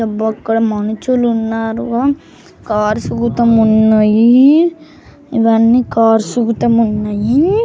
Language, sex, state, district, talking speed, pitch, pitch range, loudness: Telugu, female, Andhra Pradesh, Chittoor, 70 wpm, 225 Hz, 220-245 Hz, -13 LUFS